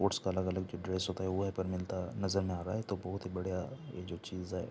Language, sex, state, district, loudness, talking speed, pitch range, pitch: Hindi, male, Bihar, Saharsa, -37 LUFS, 305 wpm, 90-95 Hz, 95 Hz